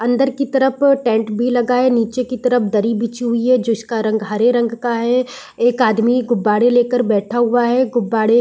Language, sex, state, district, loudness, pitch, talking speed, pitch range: Hindi, female, Chhattisgarh, Raigarh, -16 LUFS, 240 Hz, 215 wpm, 230-250 Hz